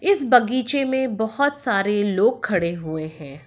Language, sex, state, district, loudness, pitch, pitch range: Hindi, female, Uttar Pradesh, Etah, -21 LUFS, 220 Hz, 170-265 Hz